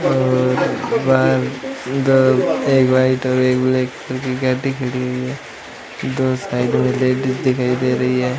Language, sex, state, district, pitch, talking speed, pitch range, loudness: Hindi, male, Rajasthan, Bikaner, 130 Hz, 155 wpm, 125-130 Hz, -17 LUFS